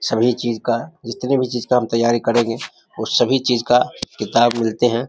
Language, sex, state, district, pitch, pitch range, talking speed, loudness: Maithili, male, Bihar, Samastipur, 120 Hz, 115-125 Hz, 200 wpm, -18 LUFS